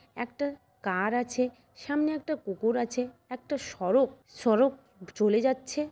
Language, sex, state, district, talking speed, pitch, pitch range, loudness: Bengali, female, West Bengal, Malda, 120 wpm, 250 Hz, 230-275 Hz, -29 LUFS